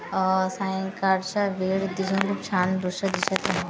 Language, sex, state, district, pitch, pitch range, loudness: Marathi, female, Maharashtra, Gondia, 190 Hz, 190-195 Hz, -25 LUFS